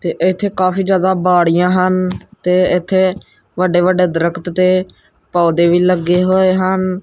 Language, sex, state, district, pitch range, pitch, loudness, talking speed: Punjabi, male, Punjab, Kapurthala, 180-185 Hz, 185 Hz, -14 LUFS, 145 wpm